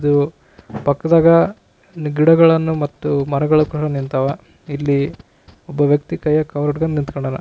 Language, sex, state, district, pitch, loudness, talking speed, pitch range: Kannada, male, Karnataka, Raichur, 150 Hz, -17 LUFS, 120 wpm, 145-160 Hz